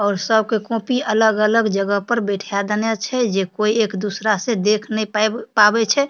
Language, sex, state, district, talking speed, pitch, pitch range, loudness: Maithili, female, Bihar, Supaul, 195 wpm, 215 Hz, 205-225 Hz, -18 LUFS